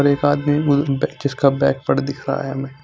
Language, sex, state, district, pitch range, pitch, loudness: Hindi, male, Punjab, Fazilka, 135-145 Hz, 140 Hz, -19 LUFS